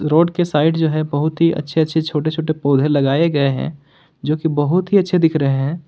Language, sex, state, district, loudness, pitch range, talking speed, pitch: Hindi, male, Jharkhand, Ranchi, -17 LUFS, 145-165 Hz, 235 wpm, 155 Hz